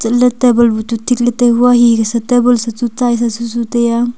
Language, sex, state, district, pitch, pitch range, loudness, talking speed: Wancho, female, Arunachal Pradesh, Longding, 235 Hz, 235-245 Hz, -12 LUFS, 230 wpm